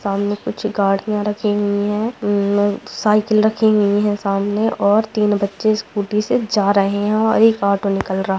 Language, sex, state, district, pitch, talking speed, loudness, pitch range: Hindi, female, Bihar, Purnia, 205 Hz, 180 wpm, -17 LUFS, 200-215 Hz